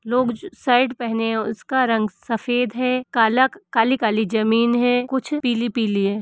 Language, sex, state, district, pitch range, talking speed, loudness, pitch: Hindi, female, Uttar Pradesh, Hamirpur, 225-255 Hz, 145 wpm, -20 LUFS, 240 Hz